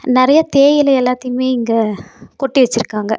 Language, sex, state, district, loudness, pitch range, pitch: Tamil, female, Tamil Nadu, Nilgiris, -14 LUFS, 235-270 Hz, 255 Hz